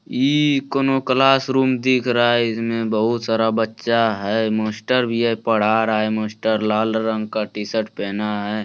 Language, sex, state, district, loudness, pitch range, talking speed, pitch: Hindi, male, Bihar, Bhagalpur, -19 LUFS, 110-125 Hz, 175 wpm, 115 Hz